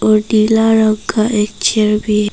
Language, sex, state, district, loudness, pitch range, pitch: Hindi, female, Arunachal Pradesh, Papum Pare, -13 LUFS, 210-220 Hz, 215 Hz